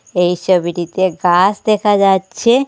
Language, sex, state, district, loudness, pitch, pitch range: Bengali, female, Assam, Hailakandi, -14 LUFS, 185 Hz, 175-210 Hz